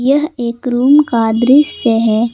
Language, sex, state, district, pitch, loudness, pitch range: Hindi, female, Jharkhand, Palamu, 245 Hz, -12 LUFS, 230-275 Hz